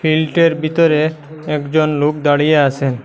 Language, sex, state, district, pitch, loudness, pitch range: Bengali, male, Assam, Hailakandi, 155 Hz, -15 LUFS, 145-155 Hz